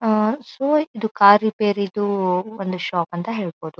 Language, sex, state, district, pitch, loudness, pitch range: Kannada, female, Karnataka, Dharwad, 205 Hz, -20 LUFS, 185-220 Hz